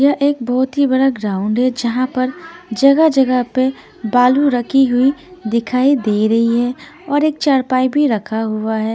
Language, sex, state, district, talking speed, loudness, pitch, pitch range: Hindi, female, Punjab, Fazilka, 170 wpm, -15 LUFS, 255 Hz, 235-280 Hz